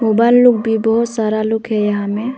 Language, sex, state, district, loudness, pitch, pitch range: Hindi, female, Arunachal Pradesh, Longding, -15 LUFS, 225 Hz, 215-235 Hz